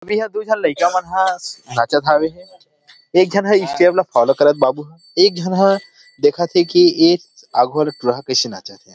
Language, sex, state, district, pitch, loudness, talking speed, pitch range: Chhattisgarhi, male, Chhattisgarh, Rajnandgaon, 180 Hz, -16 LUFS, 220 wpm, 150-200 Hz